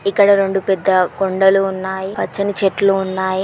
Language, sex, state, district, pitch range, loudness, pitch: Telugu, female, Andhra Pradesh, Srikakulam, 190-200 Hz, -16 LUFS, 195 Hz